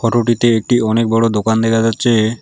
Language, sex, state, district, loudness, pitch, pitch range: Bengali, male, West Bengal, Alipurduar, -14 LUFS, 115 Hz, 110-120 Hz